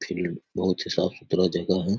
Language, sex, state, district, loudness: Hindi, male, Bihar, Saharsa, -26 LUFS